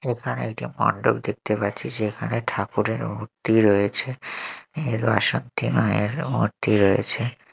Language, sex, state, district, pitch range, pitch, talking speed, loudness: Bengali, male, Odisha, Malkangiri, 105-125 Hz, 110 Hz, 120 wpm, -23 LUFS